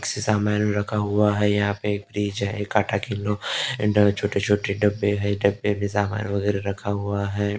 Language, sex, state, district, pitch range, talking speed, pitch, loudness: Hindi, male, Maharashtra, Gondia, 100-105 Hz, 140 wpm, 105 Hz, -23 LUFS